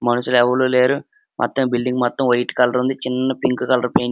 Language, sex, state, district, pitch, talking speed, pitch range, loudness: Telugu, male, Andhra Pradesh, Srikakulam, 125 Hz, 220 wpm, 125-130 Hz, -18 LUFS